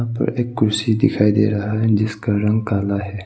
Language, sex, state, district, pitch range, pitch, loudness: Hindi, male, Arunachal Pradesh, Papum Pare, 105-110 Hz, 105 Hz, -18 LUFS